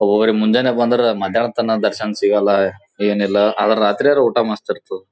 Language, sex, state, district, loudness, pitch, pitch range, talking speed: Kannada, male, Karnataka, Gulbarga, -16 LUFS, 110 Hz, 105-120 Hz, 175 wpm